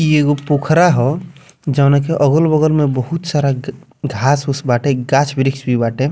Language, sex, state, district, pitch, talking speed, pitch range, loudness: Bhojpuri, male, Bihar, Muzaffarpur, 145 Hz, 165 wpm, 135-155 Hz, -15 LUFS